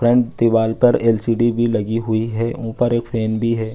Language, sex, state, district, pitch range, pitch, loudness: Hindi, male, Bihar, Gaya, 110-120 Hz, 115 Hz, -18 LUFS